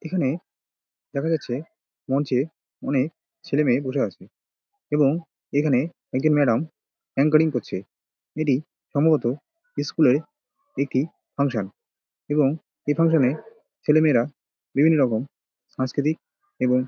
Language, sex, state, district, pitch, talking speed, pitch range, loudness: Bengali, male, West Bengal, Dakshin Dinajpur, 145 Hz, 110 wpm, 135-165 Hz, -24 LUFS